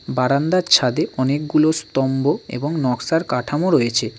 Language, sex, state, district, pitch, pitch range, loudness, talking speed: Bengali, male, West Bengal, Cooch Behar, 145 Hz, 125-160 Hz, -19 LUFS, 115 wpm